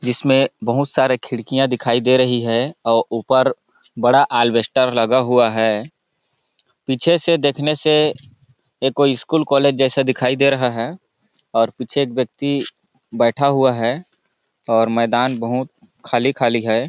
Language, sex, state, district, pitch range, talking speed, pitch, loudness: Hindi, male, Chhattisgarh, Balrampur, 120-140 Hz, 140 wpm, 130 Hz, -17 LUFS